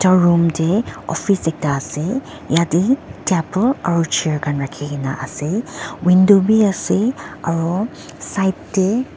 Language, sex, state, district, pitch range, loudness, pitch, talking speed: Nagamese, female, Nagaland, Dimapur, 155-200 Hz, -18 LUFS, 175 Hz, 110 wpm